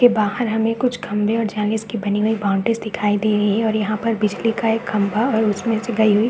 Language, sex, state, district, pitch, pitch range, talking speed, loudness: Hindi, male, Chhattisgarh, Balrampur, 220 Hz, 210-225 Hz, 265 wpm, -19 LUFS